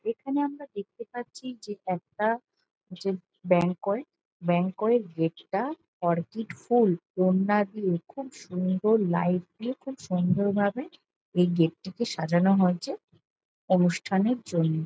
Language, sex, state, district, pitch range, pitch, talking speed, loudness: Bengali, female, West Bengal, Jhargram, 180-235 Hz, 195 Hz, 115 wpm, -27 LUFS